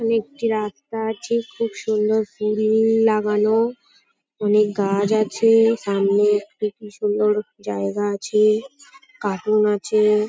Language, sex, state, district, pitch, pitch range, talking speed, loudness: Bengali, female, West Bengal, Paschim Medinipur, 215 Hz, 210-225 Hz, 110 wpm, -20 LUFS